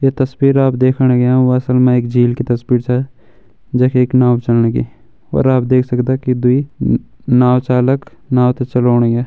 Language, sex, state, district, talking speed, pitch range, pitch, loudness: Hindi, male, Uttarakhand, Uttarkashi, 190 wpm, 120-130 Hz, 125 Hz, -14 LUFS